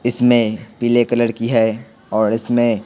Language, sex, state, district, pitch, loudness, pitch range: Hindi, male, Bihar, Patna, 115 Hz, -17 LUFS, 110-120 Hz